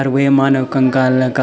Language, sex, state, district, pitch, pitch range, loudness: Garhwali, male, Uttarakhand, Tehri Garhwal, 130 Hz, 130-135 Hz, -14 LUFS